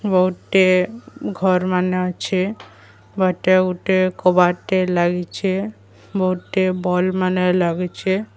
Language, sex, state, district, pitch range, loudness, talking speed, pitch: Odia, female, Odisha, Sambalpur, 180-190 Hz, -19 LUFS, 95 wpm, 185 Hz